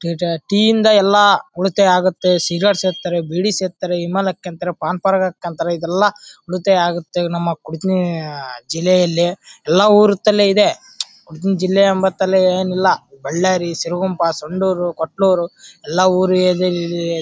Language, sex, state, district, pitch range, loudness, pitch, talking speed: Kannada, male, Karnataka, Bellary, 170-190 Hz, -16 LUFS, 185 Hz, 105 wpm